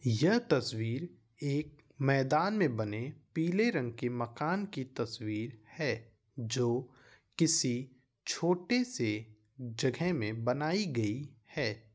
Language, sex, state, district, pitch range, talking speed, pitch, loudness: Hindi, male, Bihar, Vaishali, 115-160 Hz, 105 wpm, 130 Hz, -33 LUFS